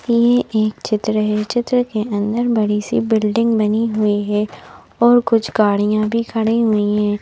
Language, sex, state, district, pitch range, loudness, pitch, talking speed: Hindi, female, Madhya Pradesh, Bhopal, 210-230 Hz, -17 LUFS, 215 Hz, 165 wpm